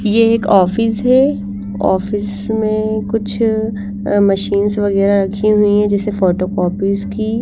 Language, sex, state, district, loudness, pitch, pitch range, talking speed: Hindi, female, Bihar, Patna, -15 LUFS, 205 Hz, 195-215 Hz, 120 wpm